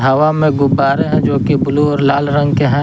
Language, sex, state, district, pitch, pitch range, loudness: Hindi, male, Jharkhand, Ranchi, 145 Hz, 140-145 Hz, -13 LUFS